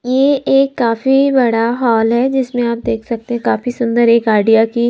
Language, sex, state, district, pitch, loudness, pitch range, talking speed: Hindi, female, Himachal Pradesh, Shimla, 240 Hz, -14 LUFS, 230-260 Hz, 195 wpm